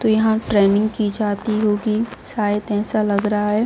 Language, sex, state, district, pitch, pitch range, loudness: Hindi, female, Jharkhand, Jamtara, 210 Hz, 205-220 Hz, -19 LUFS